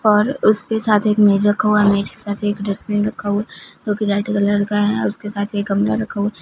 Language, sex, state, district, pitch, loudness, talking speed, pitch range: Hindi, female, Punjab, Fazilka, 205 Hz, -18 LUFS, 250 wpm, 205-215 Hz